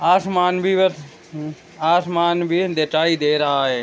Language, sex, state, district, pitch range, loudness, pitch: Hindi, male, Jharkhand, Sahebganj, 150-180 Hz, -18 LUFS, 165 Hz